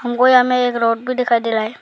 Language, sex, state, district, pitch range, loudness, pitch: Hindi, male, Arunachal Pradesh, Lower Dibang Valley, 230-250 Hz, -16 LUFS, 245 Hz